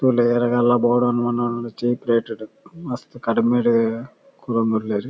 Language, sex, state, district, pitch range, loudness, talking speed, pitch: Tulu, male, Karnataka, Dakshina Kannada, 115-120 Hz, -20 LUFS, 130 wpm, 120 Hz